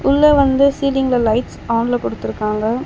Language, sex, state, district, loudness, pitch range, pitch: Tamil, female, Tamil Nadu, Chennai, -16 LUFS, 230-275 Hz, 255 Hz